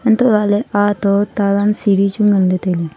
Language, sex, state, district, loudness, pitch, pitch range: Wancho, female, Arunachal Pradesh, Longding, -15 LUFS, 205 Hz, 200-210 Hz